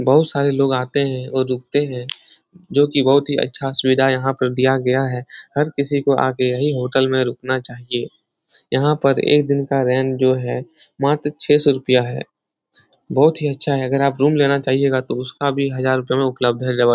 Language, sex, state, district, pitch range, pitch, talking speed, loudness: Hindi, male, Uttar Pradesh, Etah, 130-140 Hz, 135 Hz, 215 wpm, -18 LUFS